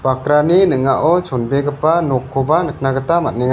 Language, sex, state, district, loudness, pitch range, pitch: Garo, male, Meghalaya, West Garo Hills, -15 LUFS, 130-165 Hz, 140 Hz